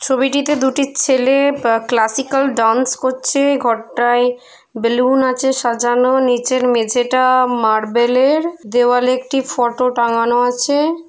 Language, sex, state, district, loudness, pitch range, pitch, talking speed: Bengali, female, West Bengal, Purulia, -15 LUFS, 240-270 Hz, 255 Hz, 120 wpm